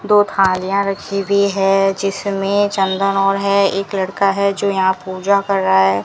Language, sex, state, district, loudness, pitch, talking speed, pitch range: Hindi, female, Rajasthan, Bikaner, -16 LUFS, 195 Hz, 180 wpm, 195-200 Hz